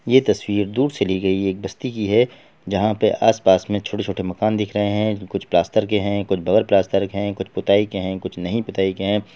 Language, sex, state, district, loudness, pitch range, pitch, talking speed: Hindi, male, Bihar, Gopalganj, -20 LUFS, 95-105 Hz, 100 Hz, 235 wpm